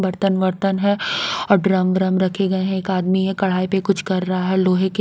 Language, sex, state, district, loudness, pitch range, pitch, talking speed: Hindi, female, Haryana, Rohtak, -19 LUFS, 185-195 Hz, 190 Hz, 250 wpm